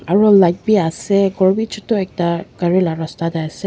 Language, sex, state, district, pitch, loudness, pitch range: Nagamese, female, Nagaland, Kohima, 185 Hz, -16 LUFS, 170-205 Hz